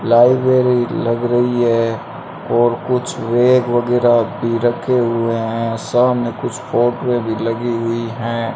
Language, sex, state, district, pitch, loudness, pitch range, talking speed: Hindi, male, Rajasthan, Bikaner, 120 Hz, -16 LUFS, 115-125 Hz, 135 wpm